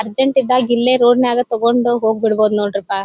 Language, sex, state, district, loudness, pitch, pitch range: Kannada, female, Karnataka, Dharwad, -14 LUFS, 240 Hz, 215-245 Hz